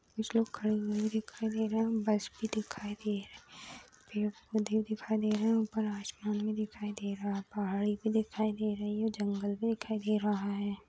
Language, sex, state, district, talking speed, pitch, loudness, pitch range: Hindi, female, Chhattisgarh, Bastar, 220 wpm, 215 Hz, -34 LUFS, 205-220 Hz